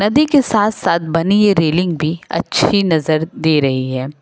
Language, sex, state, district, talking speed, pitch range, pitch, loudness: Hindi, female, Uttar Pradesh, Lucknow, 185 wpm, 155-205 Hz, 165 Hz, -15 LUFS